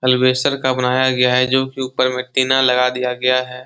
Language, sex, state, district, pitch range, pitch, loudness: Hindi, male, Bihar, Jahanabad, 125-130 Hz, 130 Hz, -16 LUFS